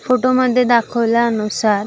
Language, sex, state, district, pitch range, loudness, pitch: Marathi, female, Maharashtra, Aurangabad, 215-250 Hz, -15 LUFS, 235 Hz